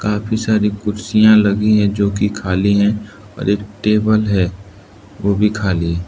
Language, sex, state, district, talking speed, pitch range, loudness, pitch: Hindi, male, Arunachal Pradesh, Lower Dibang Valley, 160 wpm, 100-105 Hz, -16 LUFS, 105 Hz